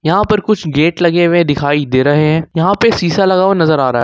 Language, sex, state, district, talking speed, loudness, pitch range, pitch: Hindi, male, Jharkhand, Ranchi, 270 wpm, -12 LUFS, 150-190 Hz, 165 Hz